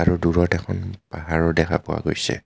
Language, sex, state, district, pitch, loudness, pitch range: Assamese, male, Assam, Kamrup Metropolitan, 85 Hz, -22 LUFS, 85-95 Hz